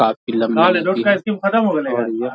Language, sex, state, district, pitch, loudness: Hindi, male, Bihar, Darbhanga, 125 Hz, -17 LUFS